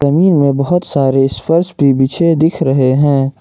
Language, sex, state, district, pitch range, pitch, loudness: Hindi, male, Jharkhand, Ranchi, 135-165 Hz, 140 Hz, -12 LUFS